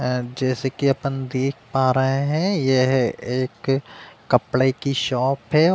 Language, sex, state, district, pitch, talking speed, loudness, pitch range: Hindi, male, Uttar Pradesh, Deoria, 130 Hz, 135 wpm, -21 LUFS, 130-140 Hz